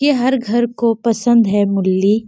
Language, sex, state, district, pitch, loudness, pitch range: Hindi, female, Chhattisgarh, Sarguja, 230 Hz, -15 LUFS, 205-240 Hz